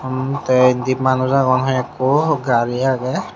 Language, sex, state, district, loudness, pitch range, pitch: Chakma, male, Tripura, Unakoti, -17 LUFS, 130-135 Hz, 130 Hz